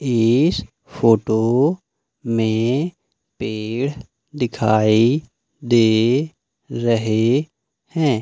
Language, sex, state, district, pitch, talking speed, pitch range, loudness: Hindi, male, Madhya Pradesh, Umaria, 120 Hz, 60 wpm, 110-140 Hz, -19 LUFS